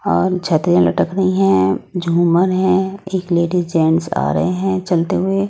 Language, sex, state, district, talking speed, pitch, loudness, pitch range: Hindi, female, Odisha, Nuapada, 165 wpm, 180 Hz, -16 LUFS, 170-190 Hz